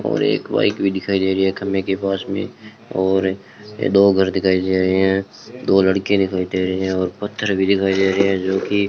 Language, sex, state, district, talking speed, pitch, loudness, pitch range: Hindi, male, Rajasthan, Bikaner, 235 wpm, 95 Hz, -18 LUFS, 95-100 Hz